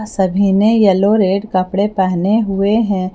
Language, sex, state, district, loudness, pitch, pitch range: Hindi, female, Jharkhand, Palamu, -14 LUFS, 195 Hz, 190-210 Hz